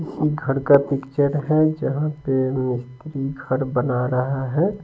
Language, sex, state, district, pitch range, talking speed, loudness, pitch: Hindi, male, Bihar, Patna, 130-150 Hz, 150 wpm, -21 LUFS, 135 Hz